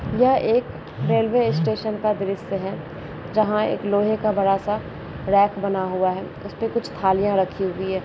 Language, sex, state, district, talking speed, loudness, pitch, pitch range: Kumaoni, female, Uttarakhand, Uttarkashi, 170 wpm, -22 LUFS, 200 Hz, 190-215 Hz